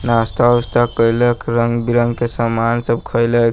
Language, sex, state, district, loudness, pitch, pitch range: Maithili, male, Bihar, Sitamarhi, -16 LUFS, 120 Hz, 115-120 Hz